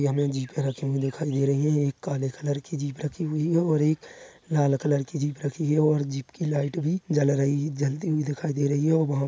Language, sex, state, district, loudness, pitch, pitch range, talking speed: Hindi, male, Chhattisgarh, Bilaspur, -26 LUFS, 145 Hz, 140-155 Hz, 280 wpm